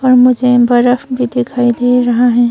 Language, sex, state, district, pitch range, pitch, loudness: Hindi, female, Arunachal Pradesh, Longding, 245-250 Hz, 245 Hz, -11 LUFS